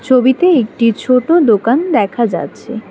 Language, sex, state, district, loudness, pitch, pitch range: Bengali, female, West Bengal, Alipurduar, -12 LUFS, 245 Hz, 230-265 Hz